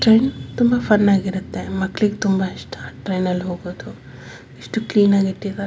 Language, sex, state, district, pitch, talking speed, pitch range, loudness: Kannada, female, Karnataka, Bellary, 190 Hz, 150 wpm, 175-205 Hz, -19 LUFS